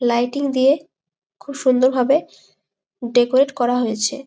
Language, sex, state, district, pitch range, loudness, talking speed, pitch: Bengali, female, West Bengal, Malda, 245-280 Hz, -18 LUFS, 125 wpm, 255 Hz